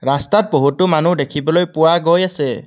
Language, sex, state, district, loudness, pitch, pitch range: Assamese, male, Assam, Kamrup Metropolitan, -15 LUFS, 160 Hz, 145-175 Hz